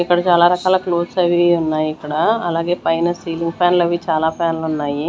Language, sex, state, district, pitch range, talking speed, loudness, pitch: Telugu, female, Andhra Pradesh, Manyam, 160-175 Hz, 200 wpm, -17 LUFS, 170 Hz